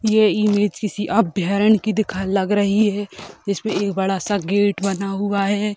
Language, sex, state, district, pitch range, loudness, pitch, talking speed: Hindi, female, Bihar, Sitamarhi, 195-210 Hz, -19 LUFS, 200 Hz, 165 wpm